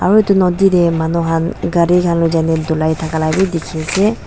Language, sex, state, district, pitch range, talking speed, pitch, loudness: Nagamese, female, Nagaland, Dimapur, 160-180 Hz, 225 wpm, 170 Hz, -14 LUFS